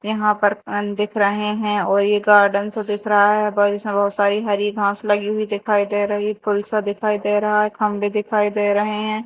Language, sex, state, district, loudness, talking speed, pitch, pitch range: Hindi, female, Madhya Pradesh, Dhar, -19 LUFS, 225 wpm, 205 Hz, 205-210 Hz